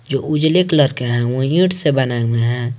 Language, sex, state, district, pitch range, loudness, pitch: Hindi, male, Jharkhand, Garhwa, 120-155 Hz, -16 LUFS, 135 Hz